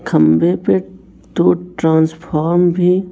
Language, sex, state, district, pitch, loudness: Hindi, male, Chhattisgarh, Raipur, 155 Hz, -15 LUFS